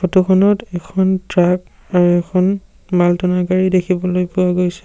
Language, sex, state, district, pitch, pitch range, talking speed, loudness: Assamese, male, Assam, Sonitpur, 180 Hz, 180-190 Hz, 135 wpm, -16 LUFS